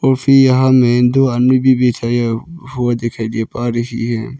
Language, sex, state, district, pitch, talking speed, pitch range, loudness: Hindi, male, Arunachal Pradesh, Lower Dibang Valley, 125 Hz, 190 wpm, 120-130 Hz, -14 LUFS